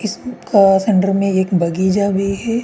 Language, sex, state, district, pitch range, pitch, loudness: Hindi, male, Uttarakhand, Tehri Garhwal, 190-210 Hz, 195 Hz, -15 LUFS